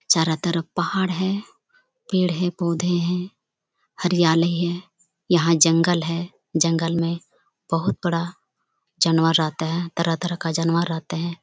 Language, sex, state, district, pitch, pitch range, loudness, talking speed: Hindi, female, Chhattisgarh, Bastar, 170 Hz, 165-180 Hz, -22 LUFS, 135 wpm